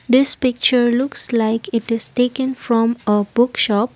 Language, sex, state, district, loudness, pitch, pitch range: English, female, Assam, Kamrup Metropolitan, -17 LUFS, 235 Hz, 230-255 Hz